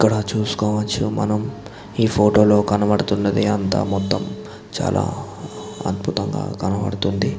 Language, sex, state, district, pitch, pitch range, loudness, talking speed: Telugu, male, Andhra Pradesh, Visakhapatnam, 105 Hz, 100-105 Hz, -20 LUFS, 95 wpm